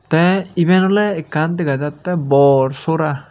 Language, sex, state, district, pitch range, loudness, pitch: Chakma, male, Tripura, Unakoti, 145-180 Hz, -16 LUFS, 160 Hz